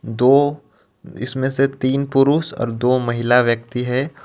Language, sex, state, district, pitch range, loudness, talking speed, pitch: Hindi, male, Jharkhand, Ranchi, 120-140 Hz, -18 LUFS, 140 wpm, 130 Hz